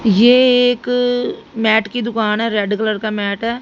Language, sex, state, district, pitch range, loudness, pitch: Hindi, female, Haryana, Jhajjar, 215-245 Hz, -15 LUFS, 225 Hz